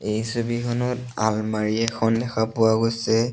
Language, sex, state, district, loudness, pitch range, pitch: Assamese, male, Assam, Sonitpur, -23 LUFS, 110-120 Hz, 115 Hz